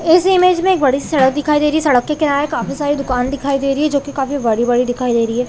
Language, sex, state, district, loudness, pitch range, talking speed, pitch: Hindi, female, Chhattisgarh, Bilaspur, -15 LUFS, 250-300 Hz, 305 wpm, 280 Hz